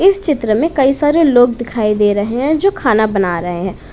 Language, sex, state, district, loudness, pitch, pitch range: Hindi, female, Uttar Pradesh, Etah, -14 LUFS, 240 Hz, 210-300 Hz